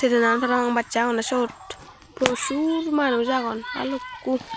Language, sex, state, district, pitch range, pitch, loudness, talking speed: Chakma, female, Tripura, Dhalai, 235-275 Hz, 250 Hz, -23 LUFS, 120 wpm